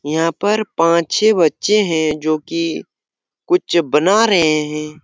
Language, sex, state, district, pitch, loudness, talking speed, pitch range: Hindi, male, Jharkhand, Jamtara, 165 Hz, -16 LUFS, 145 wpm, 155-205 Hz